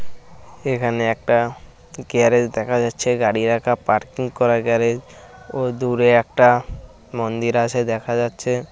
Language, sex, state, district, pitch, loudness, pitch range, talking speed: Bengali, male, West Bengal, North 24 Parganas, 120 Hz, -19 LUFS, 115-125 Hz, 125 wpm